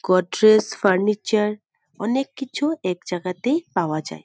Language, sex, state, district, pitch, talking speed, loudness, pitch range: Bengali, female, West Bengal, Dakshin Dinajpur, 210 Hz, 125 wpm, -21 LUFS, 180-230 Hz